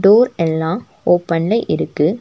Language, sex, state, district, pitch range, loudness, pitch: Tamil, female, Tamil Nadu, Nilgiris, 165-220 Hz, -17 LUFS, 175 Hz